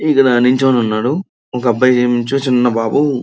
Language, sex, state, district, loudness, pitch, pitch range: Telugu, male, Andhra Pradesh, Srikakulam, -14 LUFS, 125 Hz, 120-135 Hz